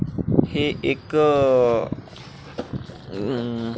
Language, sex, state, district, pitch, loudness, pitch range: Marathi, male, Maharashtra, Pune, 120 Hz, -21 LUFS, 115-135 Hz